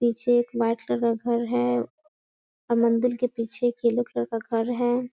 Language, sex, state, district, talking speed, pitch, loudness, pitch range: Hindi, female, Bihar, Sitamarhi, 200 wpm, 235 Hz, -25 LUFS, 230-245 Hz